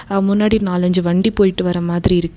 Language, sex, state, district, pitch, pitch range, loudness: Tamil, female, Tamil Nadu, Nilgiris, 185 Hz, 180-200 Hz, -16 LUFS